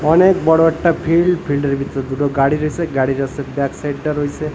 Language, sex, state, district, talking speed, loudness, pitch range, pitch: Bengali, male, Odisha, Malkangiri, 210 wpm, -17 LUFS, 140-165 Hz, 145 Hz